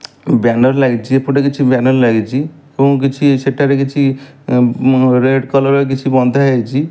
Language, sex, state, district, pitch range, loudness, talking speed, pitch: Odia, male, Odisha, Malkangiri, 130-140 Hz, -13 LUFS, 140 wpm, 135 Hz